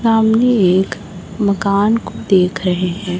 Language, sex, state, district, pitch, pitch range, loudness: Hindi, female, Chhattisgarh, Raipur, 200 Hz, 180-220 Hz, -15 LUFS